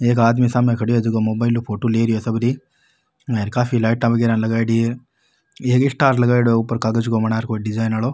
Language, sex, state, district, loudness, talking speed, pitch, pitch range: Rajasthani, male, Rajasthan, Nagaur, -18 LUFS, 220 wpm, 115 Hz, 115-120 Hz